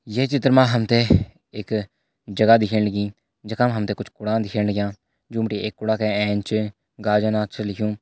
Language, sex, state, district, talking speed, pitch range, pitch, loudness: Hindi, male, Uttarakhand, Uttarkashi, 180 wpm, 105-115 Hz, 110 Hz, -21 LUFS